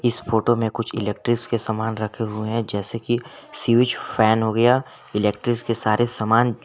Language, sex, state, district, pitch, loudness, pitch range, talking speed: Hindi, male, Jharkhand, Garhwa, 115 Hz, -21 LUFS, 110-120 Hz, 180 wpm